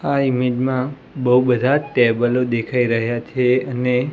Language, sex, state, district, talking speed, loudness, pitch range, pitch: Gujarati, male, Gujarat, Gandhinagar, 145 wpm, -18 LUFS, 120-130 Hz, 125 Hz